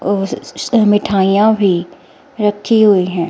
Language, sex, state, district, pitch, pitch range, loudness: Hindi, female, Himachal Pradesh, Shimla, 205 Hz, 190-215 Hz, -14 LUFS